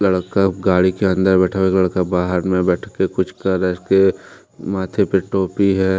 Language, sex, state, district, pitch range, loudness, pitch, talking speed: Hindi, male, Jharkhand, Deoghar, 90-95 Hz, -17 LUFS, 95 Hz, 210 wpm